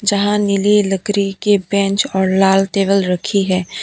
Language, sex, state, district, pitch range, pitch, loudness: Hindi, female, Tripura, West Tripura, 195-205 Hz, 195 Hz, -15 LUFS